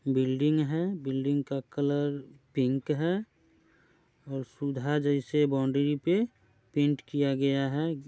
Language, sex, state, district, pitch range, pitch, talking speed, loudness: Hindi, male, Bihar, Muzaffarpur, 135-150 Hz, 140 Hz, 125 wpm, -29 LUFS